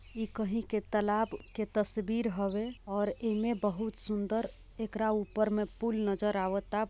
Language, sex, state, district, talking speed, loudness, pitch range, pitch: Bhojpuri, female, Bihar, Gopalganj, 155 wpm, -33 LUFS, 205-220 Hz, 215 Hz